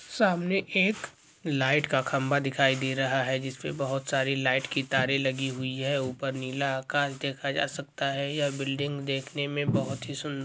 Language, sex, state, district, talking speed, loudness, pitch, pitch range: Hindi, male, Goa, North and South Goa, 190 wpm, -28 LUFS, 135 Hz, 135-145 Hz